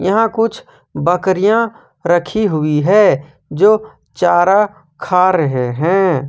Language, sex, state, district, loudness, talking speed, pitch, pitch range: Hindi, male, Jharkhand, Ranchi, -14 LUFS, 105 wpm, 180 Hz, 155-210 Hz